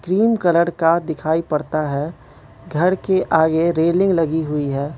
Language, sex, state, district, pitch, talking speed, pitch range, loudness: Hindi, male, Manipur, Imphal West, 160 Hz, 155 wpm, 150-175 Hz, -18 LUFS